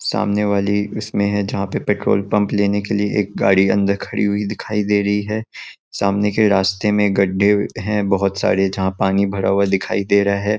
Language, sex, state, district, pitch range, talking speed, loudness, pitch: Hindi, male, Chhattisgarh, Raigarh, 100-105 Hz, 215 wpm, -18 LUFS, 100 Hz